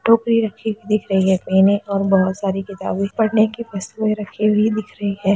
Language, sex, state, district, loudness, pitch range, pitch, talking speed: Hindi, female, Chhattisgarh, Raigarh, -19 LUFS, 195-215 Hz, 205 Hz, 210 wpm